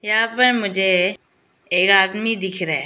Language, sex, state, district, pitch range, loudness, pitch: Hindi, female, Arunachal Pradesh, Lower Dibang Valley, 185-220 Hz, -17 LUFS, 195 Hz